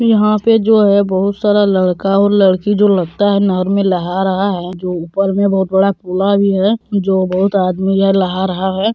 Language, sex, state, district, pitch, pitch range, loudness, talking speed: Hindi, female, Bihar, Darbhanga, 195 Hz, 190-200 Hz, -13 LUFS, 215 wpm